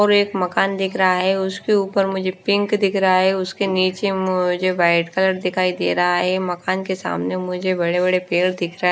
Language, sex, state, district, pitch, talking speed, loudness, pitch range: Hindi, female, Odisha, Nuapada, 185 Hz, 215 wpm, -19 LUFS, 180-195 Hz